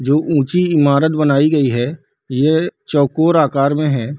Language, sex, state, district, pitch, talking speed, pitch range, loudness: Hindi, male, Bihar, Darbhanga, 145 Hz, 155 wpm, 140-160 Hz, -15 LUFS